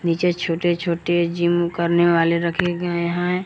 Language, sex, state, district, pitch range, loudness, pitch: Hindi, male, Jharkhand, Palamu, 170-175 Hz, -20 LUFS, 170 Hz